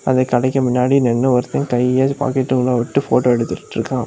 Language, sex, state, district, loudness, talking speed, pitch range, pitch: Tamil, male, Tamil Nadu, Kanyakumari, -17 LUFS, 145 wpm, 125-130 Hz, 125 Hz